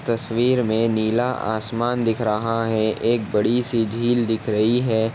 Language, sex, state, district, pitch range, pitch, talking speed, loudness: Hindi, male, Uttar Pradesh, Etah, 110-120 Hz, 115 Hz, 165 wpm, -21 LUFS